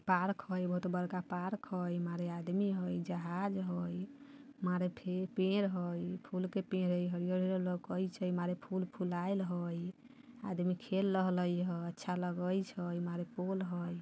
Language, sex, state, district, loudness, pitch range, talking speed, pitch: Bajjika, female, Bihar, Vaishali, -37 LUFS, 175-190 Hz, 165 wpm, 180 Hz